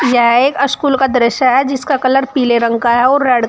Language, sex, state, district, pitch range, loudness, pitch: Hindi, female, Uttar Pradesh, Shamli, 240-270 Hz, -12 LUFS, 255 Hz